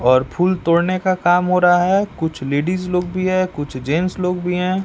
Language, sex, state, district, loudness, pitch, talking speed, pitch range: Hindi, male, Bihar, West Champaran, -18 LUFS, 180 Hz, 220 wpm, 160-185 Hz